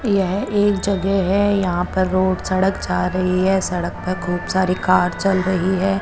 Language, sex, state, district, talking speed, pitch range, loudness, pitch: Hindi, female, Chandigarh, Chandigarh, 190 wpm, 185-195 Hz, -19 LUFS, 185 Hz